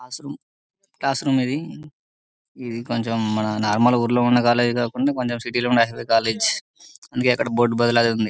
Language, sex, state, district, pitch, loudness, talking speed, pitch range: Telugu, male, Telangana, Karimnagar, 120 Hz, -21 LUFS, 150 wpm, 115-125 Hz